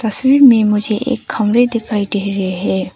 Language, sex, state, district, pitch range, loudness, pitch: Hindi, female, Arunachal Pradesh, Papum Pare, 200-240 Hz, -14 LUFS, 215 Hz